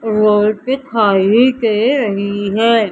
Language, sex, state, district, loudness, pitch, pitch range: Hindi, female, Madhya Pradesh, Umaria, -14 LUFS, 215 Hz, 205-235 Hz